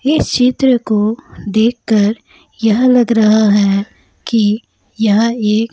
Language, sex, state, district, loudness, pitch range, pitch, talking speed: Hindi, female, Chhattisgarh, Raipur, -13 LUFS, 210-235 Hz, 220 Hz, 115 wpm